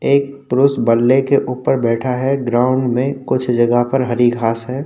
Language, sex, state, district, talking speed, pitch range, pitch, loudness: Hindi, male, Uttar Pradesh, Hamirpur, 185 wpm, 120-135 Hz, 130 Hz, -16 LUFS